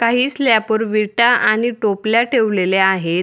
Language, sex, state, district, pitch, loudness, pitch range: Marathi, female, Maharashtra, Dhule, 220 Hz, -15 LUFS, 205-235 Hz